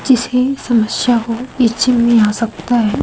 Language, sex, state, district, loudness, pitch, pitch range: Hindi, female, Madhya Pradesh, Umaria, -14 LUFS, 240 Hz, 230-250 Hz